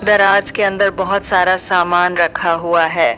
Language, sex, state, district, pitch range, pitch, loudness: Hindi, female, Uttar Pradesh, Shamli, 170-200 Hz, 185 Hz, -14 LUFS